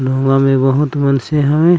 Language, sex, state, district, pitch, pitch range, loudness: Chhattisgarhi, male, Chhattisgarh, Raigarh, 135 Hz, 135-150 Hz, -14 LUFS